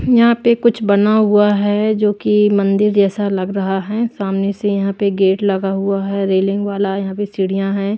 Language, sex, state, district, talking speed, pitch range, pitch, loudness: Hindi, female, Maharashtra, Washim, 205 wpm, 195-210 Hz, 200 Hz, -16 LUFS